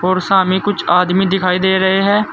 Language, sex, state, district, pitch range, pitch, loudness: Hindi, male, Uttar Pradesh, Saharanpur, 185-195 Hz, 190 Hz, -14 LUFS